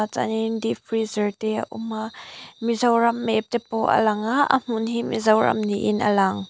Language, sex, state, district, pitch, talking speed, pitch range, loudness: Mizo, female, Mizoram, Aizawl, 225 Hz, 205 wpm, 215-230 Hz, -22 LUFS